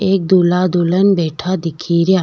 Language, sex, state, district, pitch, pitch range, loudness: Rajasthani, female, Rajasthan, Nagaur, 180 Hz, 170-185 Hz, -15 LUFS